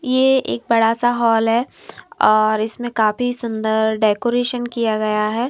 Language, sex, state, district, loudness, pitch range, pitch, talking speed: Hindi, female, Himachal Pradesh, Shimla, -18 LUFS, 220-245 Hz, 230 Hz, 140 wpm